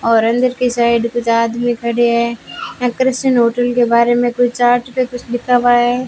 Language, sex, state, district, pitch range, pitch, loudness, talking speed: Hindi, female, Rajasthan, Bikaner, 235-245 Hz, 240 Hz, -15 LUFS, 205 wpm